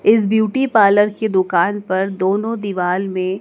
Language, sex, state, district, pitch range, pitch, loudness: Hindi, female, Madhya Pradesh, Dhar, 185-215 Hz, 200 Hz, -17 LUFS